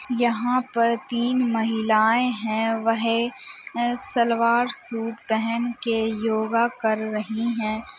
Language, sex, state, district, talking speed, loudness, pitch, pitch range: Hindi, female, Uttar Pradesh, Hamirpur, 105 wpm, -23 LUFS, 230 Hz, 225-240 Hz